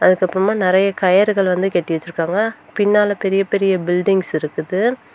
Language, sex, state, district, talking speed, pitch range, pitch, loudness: Tamil, female, Tamil Nadu, Kanyakumari, 140 wpm, 185-205 Hz, 195 Hz, -17 LUFS